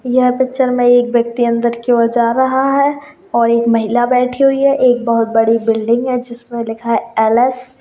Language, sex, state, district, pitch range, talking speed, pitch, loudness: Hindi, female, Rajasthan, Churu, 235-255 Hz, 230 wpm, 240 Hz, -14 LUFS